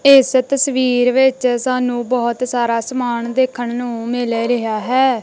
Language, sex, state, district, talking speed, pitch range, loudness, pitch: Punjabi, female, Punjab, Kapurthala, 150 wpm, 240-260 Hz, -16 LUFS, 245 Hz